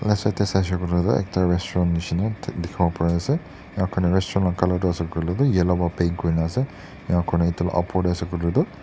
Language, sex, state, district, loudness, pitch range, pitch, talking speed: Nagamese, male, Nagaland, Dimapur, -23 LUFS, 85-95 Hz, 90 Hz, 265 wpm